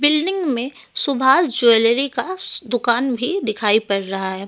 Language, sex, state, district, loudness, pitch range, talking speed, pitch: Hindi, female, Delhi, New Delhi, -17 LUFS, 220-285 Hz, 145 wpm, 245 Hz